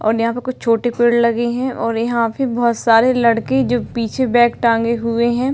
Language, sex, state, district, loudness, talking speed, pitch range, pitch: Hindi, female, Uttarakhand, Tehri Garhwal, -16 LUFS, 225 wpm, 230-245 Hz, 235 Hz